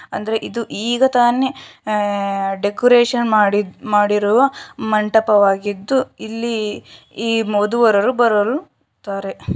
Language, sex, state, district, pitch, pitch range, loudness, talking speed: Kannada, female, Karnataka, Shimoga, 220 Hz, 205-240 Hz, -17 LUFS, 95 wpm